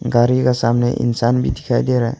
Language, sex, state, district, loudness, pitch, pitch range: Hindi, male, Arunachal Pradesh, Longding, -17 LUFS, 120 Hz, 120-125 Hz